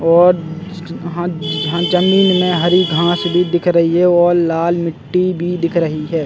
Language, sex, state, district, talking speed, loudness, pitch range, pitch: Hindi, male, Chhattisgarh, Bastar, 170 wpm, -14 LUFS, 170-180 Hz, 175 Hz